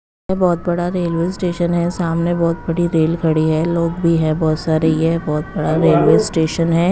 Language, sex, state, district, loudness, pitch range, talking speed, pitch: Hindi, female, Punjab, Kapurthala, -17 LUFS, 160-175 Hz, 200 wpm, 165 Hz